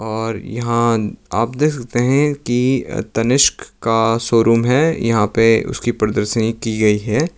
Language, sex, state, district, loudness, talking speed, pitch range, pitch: Hindi, male, Uttar Pradesh, Lucknow, -17 LUFS, 145 wpm, 110-125 Hz, 115 Hz